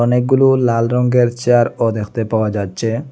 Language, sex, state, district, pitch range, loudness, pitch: Bengali, male, Assam, Hailakandi, 115-125 Hz, -15 LUFS, 120 Hz